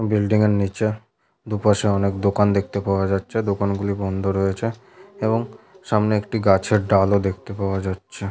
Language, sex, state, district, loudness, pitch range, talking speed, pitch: Bengali, male, West Bengal, Malda, -21 LUFS, 95-110 Hz, 150 wpm, 100 Hz